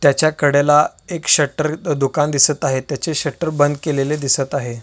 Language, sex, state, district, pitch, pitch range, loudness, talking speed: Marathi, male, Maharashtra, Solapur, 145 Hz, 140-150 Hz, -17 LUFS, 160 wpm